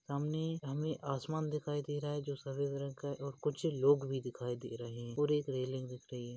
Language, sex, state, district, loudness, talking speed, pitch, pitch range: Hindi, male, Maharashtra, Nagpur, -38 LUFS, 245 wpm, 140 Hz, 130-145 Hz